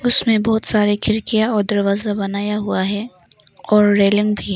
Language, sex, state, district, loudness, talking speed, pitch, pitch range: Hindi, female, Arunachal Pradesh, Longding, -17 LUFS, 160 wpm, 210 Hz, 200-220 Hz